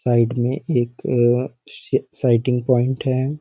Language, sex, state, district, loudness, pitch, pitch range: Hindi, male, Bihar, Sitamarhi, -20 LUFS, 125 Hz, 120-130 Hz